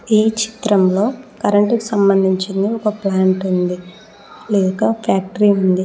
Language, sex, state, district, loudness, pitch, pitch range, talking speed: Telugu, female, Telangana, Mahabubabad, -16 LUFS, 200 Hz, 190-215 Hz, 100 wpm